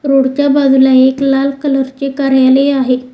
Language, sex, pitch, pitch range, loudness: Marathi, female, 270 Hz, 265-275 Hz, -11 LUFS